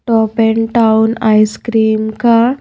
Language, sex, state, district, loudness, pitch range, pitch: Hindi, female, Madhya Pradesh, Bhopal, -12 LUFS, 220-230 Hz, 225 Hz